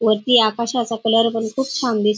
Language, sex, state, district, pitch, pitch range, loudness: Marathi, female, Maharashtra, Dhule, 230 Hz, 220-245 Hz, -18 LUFS